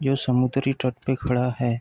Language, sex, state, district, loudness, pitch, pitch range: Hindi, male, Uttar Pradesh, Deoria, -24 LUFS, 130 Hz, 125-135 Hz